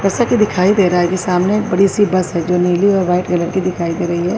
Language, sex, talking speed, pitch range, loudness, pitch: Urdu, female, 300 wpm, 175-195 Hz, -15 LUFS, 185 Hz